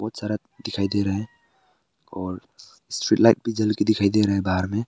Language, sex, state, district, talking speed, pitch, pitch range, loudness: Hindi, male, Arunachal Pradesh, Papum Pare, 195 wpm, 105 Hz, 100-110 Hz, -23 LUFS